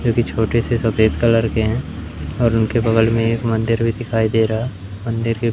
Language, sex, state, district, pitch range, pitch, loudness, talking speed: Hindi, male, Madhya Pradesh, Umaria, 110-115 Hz, 115 Hz, -18 LUFS, 215 wpm